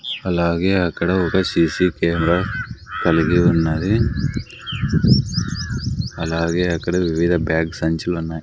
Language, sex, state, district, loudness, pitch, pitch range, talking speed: Telugu, male, Andhra Pradesh, Sri Satya Sai, -19 LUFS, 85 Hz, 80-90 Hz, 95 wpm